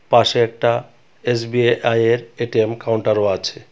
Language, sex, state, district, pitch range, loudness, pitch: Bengali, male, Tripura, West Tripura, 115-120 Hz, -18 LUFS, 115 Hz